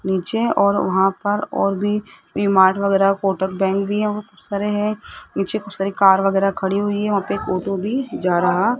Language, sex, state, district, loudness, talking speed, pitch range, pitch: Hindi, male, Rajasthan, Jaipur, -19 LUFS, 220 wpm, 190-205 Hz, 195 Hz